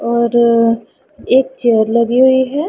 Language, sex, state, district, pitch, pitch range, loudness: Hindi, female, Punjab, Pathankot, 235 Hz, 230-260 Hz, -13 LUFS